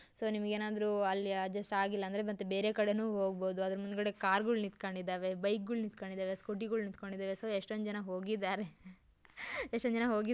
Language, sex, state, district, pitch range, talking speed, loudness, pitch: Kannada, female, Karnataka, Dakshina Kannada, 195-215 Hz, 170 wpm, -36 LUFS, 205 Hz